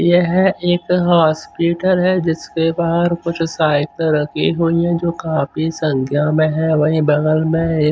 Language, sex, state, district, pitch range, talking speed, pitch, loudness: Hindi, male, Chandigarh, Chandigarh, 155-170 Hz, 150 wpm, 165 Hz, -16 LUFS